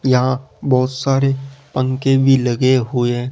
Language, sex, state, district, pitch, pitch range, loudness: Hindi, male, Rajasthan, Jaipur, 130 Hz, 125-135 Hz, -17 LUFS